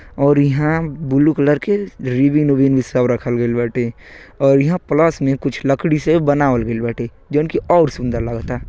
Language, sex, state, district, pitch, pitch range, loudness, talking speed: Bhojpuri, male, Uttar Pradesh, Gorakhpur, 135 Hz, 120-150 Hz, -16 LUFS, 180 wpm